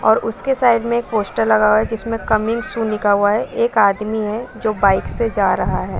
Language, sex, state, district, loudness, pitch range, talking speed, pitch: Hindi, female, Jharkhand, Sahebganj, -17 LUFS, 210-230 Hz, 240 wpm, 220 Hz